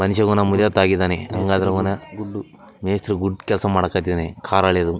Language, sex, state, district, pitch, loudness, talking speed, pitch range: Kannada, male, Karnataka, Raichur, 95 Hz, -20 LUFS, 155 wpm, 95-100 Hz